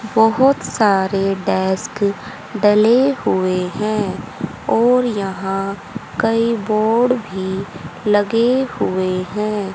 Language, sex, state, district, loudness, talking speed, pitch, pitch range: Hindi, female, Haryana, Charkhi Dadri, -17 LUFS, 85 wpm, 210 Hz, 190-225 Hz